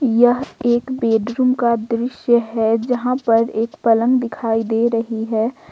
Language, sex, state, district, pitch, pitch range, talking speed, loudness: Hindi, female, Jharkhand, Ranchi, 235 Hz, 225-245 Hz, 145 wpm, -18 LUFS